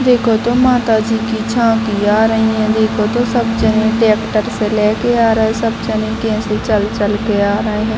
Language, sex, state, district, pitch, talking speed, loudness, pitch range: Hindi, female, Bihar, Gopalganj, 220 Hz, 235 wpm, -14 LUFS, 215-230 Hz